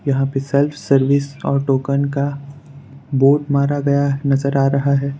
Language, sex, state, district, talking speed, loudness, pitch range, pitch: Hindi, male, Gujarat, Valsad, 160 wpm, -17 LUFS, 135-140 Hz, 140 Hz